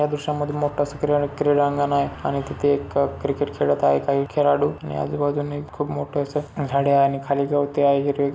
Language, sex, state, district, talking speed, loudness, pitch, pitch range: Marathi, male, Maharashtra, Chandrapur, 170 wpm, -22 LUFS, 145 Hz, 140-145 Hz